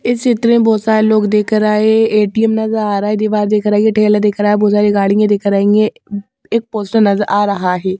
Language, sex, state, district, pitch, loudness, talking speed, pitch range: Hindi, female, Madhya Pradesh, Bhopal, 210 Hz, -13 LUFS, 255 wpm, 205-220 Hz